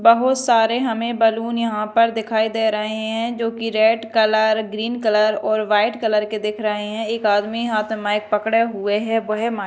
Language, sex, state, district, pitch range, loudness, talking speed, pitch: Hindi, female, Madhya Pradesh, Dhar, 215-230 Hz, -19 LUFS, 205 wpm, 220 Hz